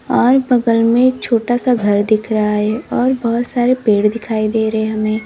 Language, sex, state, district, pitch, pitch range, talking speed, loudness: Hindi, female, Uttar Pradesh, Lalitpur, 230 Hz, 215-245 Hz, 195 wpm, -15 LUFS